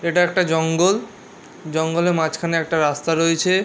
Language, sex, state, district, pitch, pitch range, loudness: Bengali, male, West Bengal, Jalpaiguri, 165 Hz, 160-175 Hz, -19 LUFS